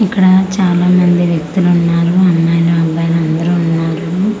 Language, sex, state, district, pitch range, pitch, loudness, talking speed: Telugu, female, Andhra Pradesh, Manyam, 165-180 Hz, 170 Hz, -12 LUFS, 110 wpm